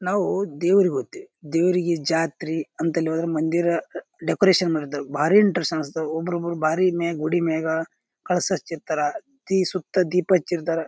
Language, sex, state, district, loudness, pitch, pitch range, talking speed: Kannada, male, Karnataka, Bijapur, -23 LUFS, 170 Hz, 160-185 Hz, 130 wpm